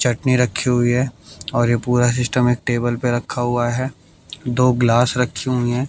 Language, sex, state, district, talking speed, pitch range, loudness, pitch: Hindi, male, Bihar, West Champaran, 195 wpm, 120-125 Hz, -19 LUFS, 120 Hz